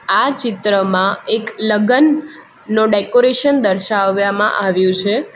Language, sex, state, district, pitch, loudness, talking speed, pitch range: Gujarati, female, Gujarat, Valsad, 215 Hz, -15 LUFS, 100 wpm, 200-255 Hz